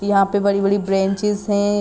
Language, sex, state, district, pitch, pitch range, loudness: Hindi, female, Jharkhand, Sahebganj, 200 Hz, 195-205 Hz, -18 LUFS